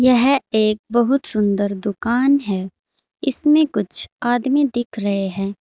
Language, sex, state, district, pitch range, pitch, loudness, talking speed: Hindi, female, Uttar Pradesh, Saharanpur, 205-275 Hz, 240 Hz, -18 LUFS, 130 wpm